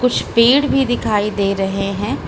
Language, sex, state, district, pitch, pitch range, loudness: Hindi, female, Uttar Pradesh, Lucknow, 210 Hz, 195-250 Hz, -16 LUFS